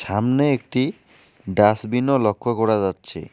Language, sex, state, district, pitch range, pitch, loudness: Bengali, male, West Bengal, Alipurduar, 105-130 Hz, 115 Hz, -20 LUFS